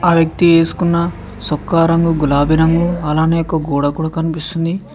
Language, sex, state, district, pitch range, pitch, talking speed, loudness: Telugu, male, Telangana, Mahabubabad, 155-170 Hz, 165 Hz, 145 wpm, -15 LUFS